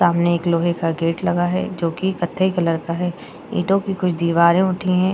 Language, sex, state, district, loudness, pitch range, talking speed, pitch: Hindi, female, Uttar Pradesh, Jyotiba Phule Nagar, -19 LUFS, 170-185 Hz, 220 wpm, 175 Hz